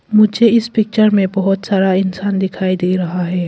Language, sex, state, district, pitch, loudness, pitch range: Hindi, female, Arunachal Pradesh, Papum Pare, 195 Hz, -15 LUFS, 185-215 Hz